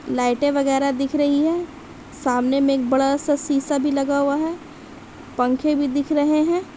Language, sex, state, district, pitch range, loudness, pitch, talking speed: Hindi, female, Jharkhand, Sahebganj, 275-300 Hz, -20 LUFS, 285 Hz, 175 wpm